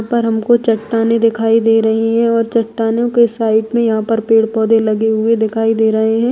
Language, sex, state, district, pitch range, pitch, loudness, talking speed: Hindi, female, Bihar, Begusarai, 220-230 Hz, 225 Hz, -14 LUFS, 220 wpm